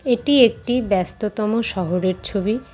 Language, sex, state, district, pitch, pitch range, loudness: Bengali, female, West Bengal, Cooch Behar, 215 Hz, 190-245 Hz, -19 LUFS